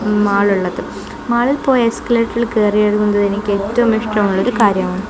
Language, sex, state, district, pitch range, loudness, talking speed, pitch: Malayalam, female, Kerala, Kozhikode, 200-235 Hz, -15 LUFS, 140 wpm, 210 Hz